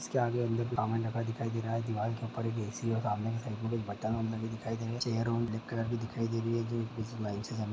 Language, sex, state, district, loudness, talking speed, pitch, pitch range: Hindi, male, Andhra Pradesh, Guntur, -35 LUFS, 130 wpm, 115 Hz, 110-115 Hz